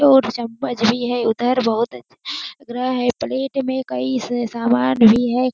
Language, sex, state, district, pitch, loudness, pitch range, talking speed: Hindi, female, Bihar, Kishanganj, 245 Hz, -19 LUFS, 230-255 Hz, 185 wpm